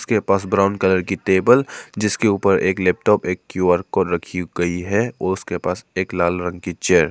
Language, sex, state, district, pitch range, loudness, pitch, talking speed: Hindi, male, Arunachal Pradesh, Papum Pare, 90-100 Hz, -19 LUFS, 95 Hz, 200 wpm